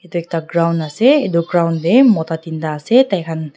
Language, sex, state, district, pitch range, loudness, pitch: Nagamese, female, Nagaland, Dimapur, 160-195 Hz, -15 LUFS, 170 Hz